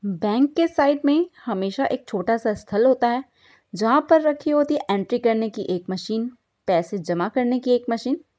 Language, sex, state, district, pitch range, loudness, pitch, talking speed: Hindi, female, Bihar, Saharsa, 205-285 Hz, -22 LUFS, 240 Hz, 200 wpm